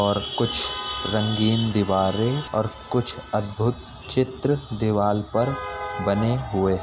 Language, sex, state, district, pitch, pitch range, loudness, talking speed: Hindi, male, Uttar Pradesh, Etah, 110 Hz, 105-120 Hz, -24 LUFS, 115 wpm